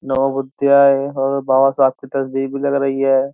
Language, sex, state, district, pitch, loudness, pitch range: Hindi, male, Uttar Pradesh, Jyotiba Phule Nagar, 135 Hz, -16 LUFS, 135-140 Hz